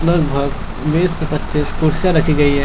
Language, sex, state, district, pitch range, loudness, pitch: Hindi, male, Bihar, Lakhisarai, 145-165 Hz, -17 LUFS, 155 Hz